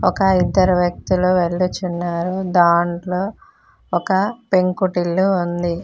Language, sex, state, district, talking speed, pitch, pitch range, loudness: Telugu, female, Telangana, Mahabubabad, 80 wpm, 185 Hz, 175-190 Hz, -18 LUFS